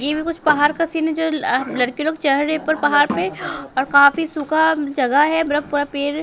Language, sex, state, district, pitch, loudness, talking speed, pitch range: Hindi, male, Bihar, West Champaran, 295 Hz, -18 LUFS, 220 wpm, 285-315 Hz